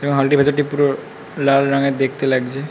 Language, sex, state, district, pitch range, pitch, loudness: Bengali, male, West Bengal, North 24 Parganas, 135-145 Hz, 140 Hz, -17 LUFS